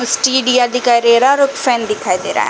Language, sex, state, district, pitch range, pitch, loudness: Hindi, female, Chhattisgarh, Balrampur, 235-260 Hz, 245 Hz, -13 LUFS